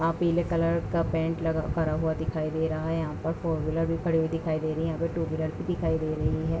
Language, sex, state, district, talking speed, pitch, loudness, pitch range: Hindi, female, Uttar Pradesh, Hamirpur, 290 wpm, 160 Hz, -28 LUFS, 155-165 Hz